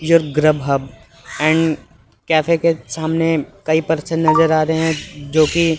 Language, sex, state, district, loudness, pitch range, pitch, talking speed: Hindi, male, Chandigarh, Chandigarh, -17 LUFS, 155-165 Hz, 160 Hz, 115 wpm